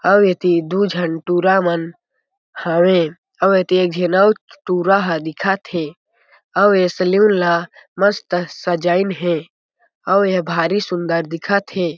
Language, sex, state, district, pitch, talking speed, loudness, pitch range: Chhattisgarhi, male, Chhattisgarh, Jashpur, 180 Hz, 145 wpm, -17 LUFS, 170-195 Hz